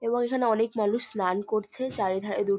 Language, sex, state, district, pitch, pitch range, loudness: Bengali, female, West Bengal, North 24 Parganas, 215 Hz, 200-235 Hz, -27 LUFS